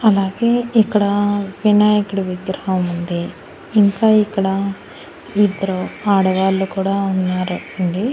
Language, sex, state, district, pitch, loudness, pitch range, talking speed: Telugu, female, Andhra Pradesh, Annamaya, 195 Hz, -17 LUFS, 190-210 Hz, 90 wpm